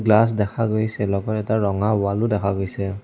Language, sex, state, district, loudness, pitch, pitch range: Assamese, male, Assam, Sonitpur, -21 LUFS, 105 Hz, 100-110 Hz